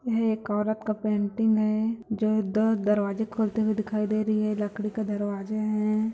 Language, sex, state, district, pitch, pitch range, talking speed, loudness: Hindi, female, Chhattisgarh, Bilaspur, 215 Hz, 210-220 Hz, 185 wpm, -27 LUFS